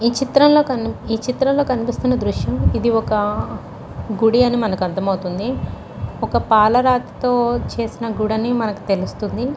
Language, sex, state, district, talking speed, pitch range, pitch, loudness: Telugu, female, Andhra Pradesh, Chittoor, 125 wpm, 210-250 Hz, 230 Hz, -18 LUFS